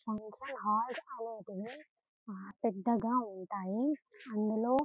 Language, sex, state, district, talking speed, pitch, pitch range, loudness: Telugu, female, Telangana, Karimnagar, 100 wpm, 225 Hz, 210-250 Hz, -36 LUFS